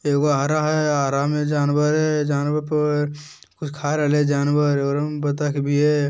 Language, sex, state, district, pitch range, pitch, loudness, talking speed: Hindi, male, Bihar, Jamui, 145-150 Hz, 150 Hz, -20 LUFS, 175 wpm